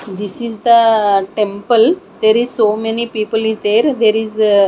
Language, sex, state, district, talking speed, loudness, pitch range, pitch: English, female, Odisha, Nuapada, 180 wpm, -14 LUFS, 210-230 Hz, 220 Hz